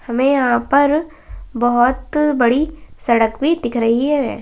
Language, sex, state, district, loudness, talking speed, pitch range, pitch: Kumaoni, male, Uttarakhand, Uttarkashi, -16 LUFS, 135 wpm, 240-295 Hz, 260 Hz